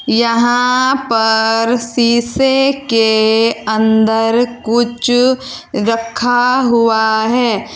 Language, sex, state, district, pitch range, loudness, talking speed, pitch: Hindi, female, Uttar Pradesh, Saharanpur, 225-245 Hz, -13 LUFS, 70 wpm, 235 Hz